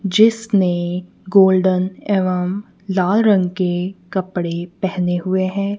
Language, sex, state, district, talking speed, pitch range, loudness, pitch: Hindi, female, Punjab, Kapurthala, 105 wpm, 180-195 Hz, -18 LUFS, 185 Hz